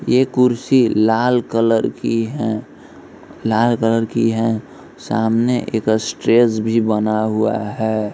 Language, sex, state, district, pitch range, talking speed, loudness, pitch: Hindi, male, Bihar, East Champaran, 110-115 Hz, 125 wpm, -17 LUFS, 115 Hz